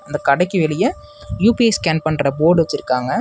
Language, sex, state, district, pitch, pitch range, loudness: Tamil, male, Tamil Nadu, Namakkal, 160 Hz, 145-180 Hz, -17 LUFS